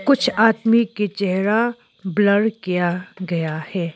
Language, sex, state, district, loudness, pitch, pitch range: Hindi, female, Arunachal Pradesh, Lower Dibang Valley, -19 LUFS, 200 Hz, 180-225 Hz